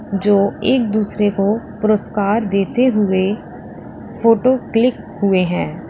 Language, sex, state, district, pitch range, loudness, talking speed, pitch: Hindi, female, Uttar Pradesh, Lalitpur, 200-230 Hz, -17 LUFS, 110 wpm, 210 Hz